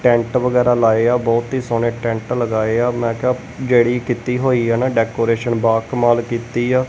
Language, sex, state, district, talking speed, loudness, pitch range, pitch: Punjabi, male, Punjab, Kapurthala, 190 wpm, -17 LUFS, 115-125 Hz, 120 Hz